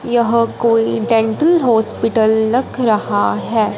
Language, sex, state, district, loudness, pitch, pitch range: Hindi, female, Punjab, Fazilka, -15 LUFS, 225 Hz, 220-235 Hz